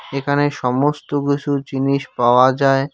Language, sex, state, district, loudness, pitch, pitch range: Bengali, male, West Bengal, Cooch Behar, -17 LUFS, 140 Hz, 135-145 Hz